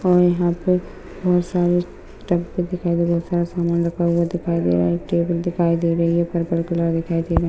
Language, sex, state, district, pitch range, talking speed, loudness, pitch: Hindi, female, Bihar, Darbhanga, 170-175 Hz, 240 wpm, -20 LUFS, 170 Hz